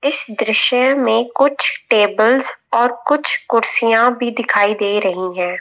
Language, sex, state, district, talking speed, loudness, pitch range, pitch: Hindi, female, Rajasthan, Jaipur, 140 wpm, -14 LUFS, 210-255 Hz, 230 Hz